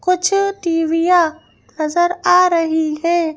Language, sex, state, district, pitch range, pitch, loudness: Hindi, female, Madhya Pradesh, Bhopal, 325-360 Hz, 345 Hz, -16 LUFS